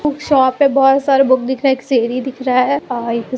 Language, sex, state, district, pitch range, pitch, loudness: Hindi, female, Bihar, Muzaffarpur, 255-275 Hz, 260 Hz, -14 LUFS